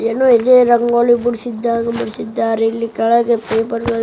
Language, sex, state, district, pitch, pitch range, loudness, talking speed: Kannada, male, Karnataka, Bellary, 235 Hz, 230-240 Hz, -15 LUFS, 135 wpm